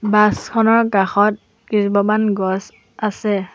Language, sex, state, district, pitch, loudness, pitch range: Assamese, female, Assam, Sonitpur, 210 Hz, -17 LUFS, 200-215 Hz